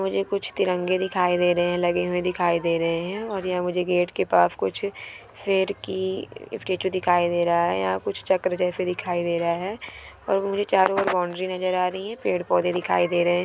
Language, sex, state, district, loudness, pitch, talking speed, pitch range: Hindi, female, Maharashtra, Dhule, -24 LUFS, 180 Hz, 225 wpm, 175-190 Hz